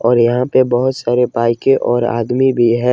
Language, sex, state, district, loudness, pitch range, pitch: Hindi, male, Jharkhand, Ranchi, -14 LUFS, 120-130 Hz, 120 Hz